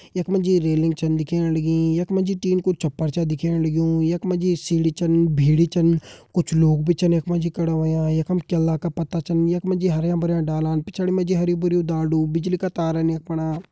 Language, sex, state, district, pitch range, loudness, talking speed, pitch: Hindi, male, Uttarakhand, Uttarkashi, 160-175 Hz, -21 LUFS, 235 wpm, 165 Hz